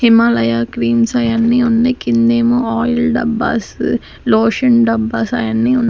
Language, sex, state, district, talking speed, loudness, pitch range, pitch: Telugu, female, Andhra Pradesh, Sri Satya Sai, 140 wpm, -14 LUFS, 225-240 Hz, 230 Hz